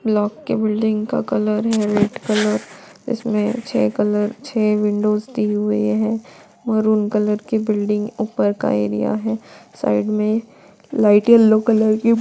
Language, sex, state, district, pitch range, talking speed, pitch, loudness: Hindi, female, Bihar, Saran, 210-220 Hz, 155 wpm, 215 Hz, -19 LUFS